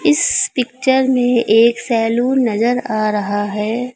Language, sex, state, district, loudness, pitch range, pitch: Hindi, female, Uttar Pradesh, Lucknow, -15 LUFS, 220-255 Hz, 240 Hz